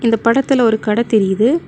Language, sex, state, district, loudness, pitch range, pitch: Tamil, female, Tamil Nadu, Nilgiris, -14 LUFS, 220-240 Hz, 230 Hz